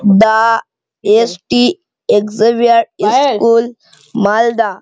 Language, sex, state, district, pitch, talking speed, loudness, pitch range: Bengali, male, West Bengal, Malda, 220 Hz, 60 wpm, -12 LUFS, 205-230 Hz